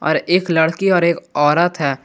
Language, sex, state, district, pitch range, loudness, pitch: Hindi, male, Jharkhand, Garhwa, 150-175 Hz, -16 LUFS, 170 Hz